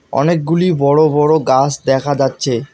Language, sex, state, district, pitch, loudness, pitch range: Bengali, male, West Bengal, Alipurduar, 145 Hz, -14 LUFS, 135-160 Hz